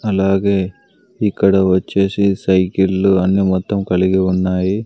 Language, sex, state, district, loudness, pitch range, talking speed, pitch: Telugu, male, Andhra Pradesh, Sri Satya Sai, -15 LUFS, 95-100 Hz, 100 wpm, 95 Hz